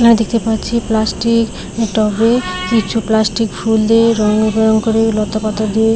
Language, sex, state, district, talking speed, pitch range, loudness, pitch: Bengali, female, West Bengal, Paschim Medinipur, 150 wpm, 215-225 Hz, -14 LUFS, 220 Hz